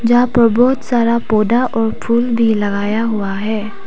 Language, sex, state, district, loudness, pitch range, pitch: Hindi, female, Arunachal Pradesh, Papum Pare, -15 LUFS, 215-235 Hz, 230 Hz